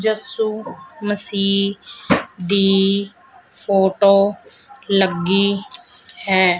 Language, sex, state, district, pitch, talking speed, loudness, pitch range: Punjabi, female, Punjab, Fazilka, 200 Hz, 55 wpm, -18 LUFS, 195-215 Hz